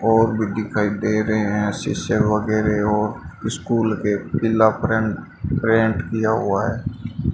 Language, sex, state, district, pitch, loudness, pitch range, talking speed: Hindi, male, Rajasthan, Bikaner, 110 Hz, -20 LUFS, 105-115 Hz, 140 wpm